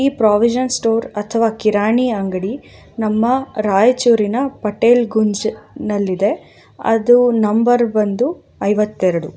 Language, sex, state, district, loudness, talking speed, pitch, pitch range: Kannada, female, Karnataka, Raichur, -16 LUFS, 90 wpm, 225 Hz, 210-240 Hz